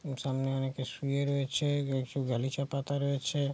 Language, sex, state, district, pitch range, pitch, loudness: Bengali, male, West Bengal, Kolkata, 135-140 Hz, 140 Hz, -33 LUFS